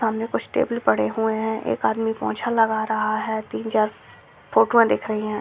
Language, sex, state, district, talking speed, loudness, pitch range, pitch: Hindi, female, Bihar, Purnia, 235 wpm, -22 LUFS, 215-225 Hz, 220 Hz